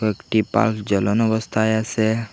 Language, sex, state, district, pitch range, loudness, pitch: Bengali, male, Assam, Hailakandi, 105-110 Hz, -20 LUFS, 110 Hz